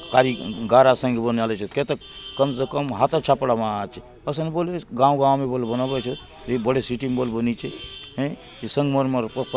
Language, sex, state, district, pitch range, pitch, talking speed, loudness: Halbi, male, Chhattisgarh, Bastar, 120-135 Hz, 130 Hz, 175 wpm, -22 LUFS